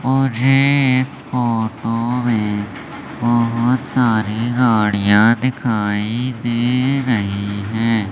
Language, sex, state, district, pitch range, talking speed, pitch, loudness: Hindi, male, Madhya Pradesh, Umaria, 110-125 Hz, 80 wpm, 120 Hz, -17 LUFS